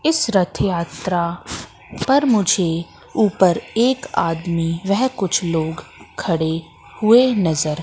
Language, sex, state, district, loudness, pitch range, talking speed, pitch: Hindi, female, Madhya Pradesh, Katni, -19 LUFS, 165-220 Hz, 105 wpm, 180 Hz